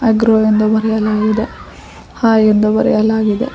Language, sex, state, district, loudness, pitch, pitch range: Kannada, female, Karnataka, Koppal, -13 LUFS, 220 Hz, 215-225 Hz